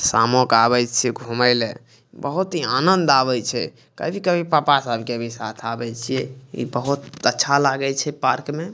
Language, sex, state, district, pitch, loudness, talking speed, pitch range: Maithili, male, Bihar, Madhepura, 125 Hz, -20 LUFS, 170 wpm, 120-140 Hz